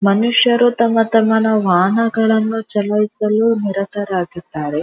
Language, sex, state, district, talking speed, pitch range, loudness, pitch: Kannada, female, Karnataka, Dharwad, 75 wpm, 200-225 Hz, -15 LUFS, 215 Hz